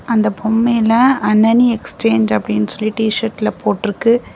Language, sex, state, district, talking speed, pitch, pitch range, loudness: Tamil, female, Tamil Nadu, Namakkal, 110 wpm, 220 Hz, 210-230 Hz, -15 LUFS